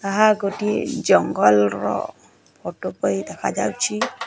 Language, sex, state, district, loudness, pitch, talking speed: Odia, male, Odisha, Nuapada, -20 LUFS, 195 Hz, 85 wpm